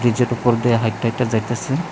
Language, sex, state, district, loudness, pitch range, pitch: Bengali, male, Tripura, West Tripura, -19 LUFS, 115-125 Hz, 120 Hz